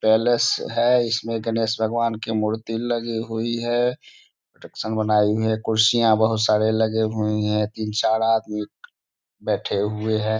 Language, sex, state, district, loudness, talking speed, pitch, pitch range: Hindi, male, Bihar, Sitamarhi, -22 LUFS, 120 wpm, 110 Hz, 110-115 Hz